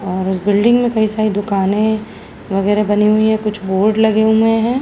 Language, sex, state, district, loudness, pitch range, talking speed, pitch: Hindi, female, Uttar Pradesh, Jalaun, -15 LUFS, 205-220 Hz, 200 wpm, 215 Hz